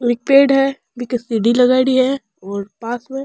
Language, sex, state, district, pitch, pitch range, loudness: Rajasthani, female, Rajasthan, Churu, 245 Hz, 235-270 Hz, -16 LUFS